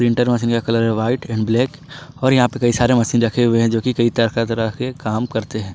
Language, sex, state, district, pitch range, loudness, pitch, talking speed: Hindi, male, Jharkhand, Ranchi, 115-125 Hz, -18 LUFS, 120 Hz, 250 wpm